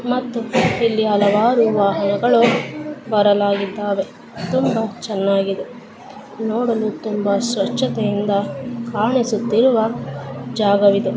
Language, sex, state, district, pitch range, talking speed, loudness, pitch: Kannada, female, Karnataka, Dharwad, 200-235 Hz, 65 wpm, -18 LUFS, 220 Hz